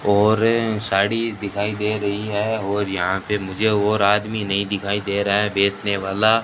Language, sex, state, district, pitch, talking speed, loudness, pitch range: Hindi, male, Rajasthan, Bikaner, 105 Hz, 175 wpm, -20 LUFS, 100-105 Hz